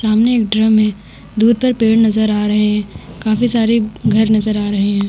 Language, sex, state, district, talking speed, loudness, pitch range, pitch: Hindi, female, Bihar, Vaishali, 225 wpm, -14 LUFS, 210-225 Hz, 215 Hz